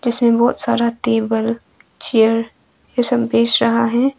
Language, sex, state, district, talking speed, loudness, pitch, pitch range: Hindi, female, Arunachal Pradesh, Longding, 145 wpm, -16 LUFS, 235 Hz, 230-240 Hz